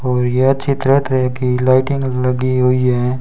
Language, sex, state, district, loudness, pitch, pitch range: Hindi, male, Rajasthan, Bikaner, -15 LUFS, 130 Hz, 125-135 Hz